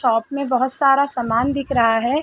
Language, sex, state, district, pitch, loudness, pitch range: Hindi, female, Uttar Pradesh, Varanasi, 255 Hz, -18 LUFS, 235-280 Hz